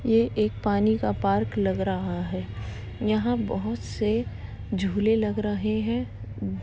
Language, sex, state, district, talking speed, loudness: Hindi, female, Uttar Pradesh, Jalaun, 135 wpm, -26 LUFS